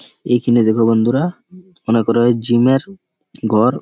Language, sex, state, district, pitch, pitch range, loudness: Bengali, male, West Bengal, Malda, 120 Hz, 115-170 Hz, -15 LUFS